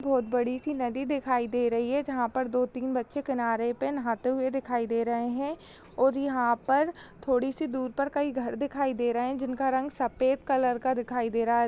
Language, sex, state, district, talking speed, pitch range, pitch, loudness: Hindi, female, Bihar, Purnia, 210 wpm, 240-270 Hz, 255 Hz, -29 LUFS